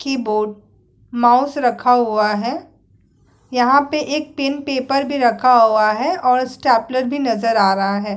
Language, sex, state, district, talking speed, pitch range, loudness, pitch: Hindi, female, Uttar Pradesh, Muzaffarnagar, 155 wpm, 225-275 Hz, -17 LUFS, 250 Hz